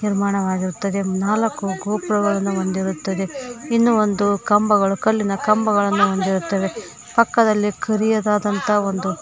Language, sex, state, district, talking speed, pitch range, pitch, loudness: Kannada, female, Karnataka, Koppal, 85 wpm, 195-215 Hz, 205 Hz, -19 LUFS